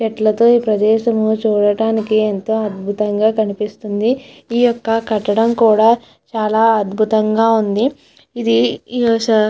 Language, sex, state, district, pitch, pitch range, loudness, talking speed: Telugu, female, Andhra Pradesh, Chittoor, 220 Hz, 215-225 Hz, -15 LUFS, 120 wpm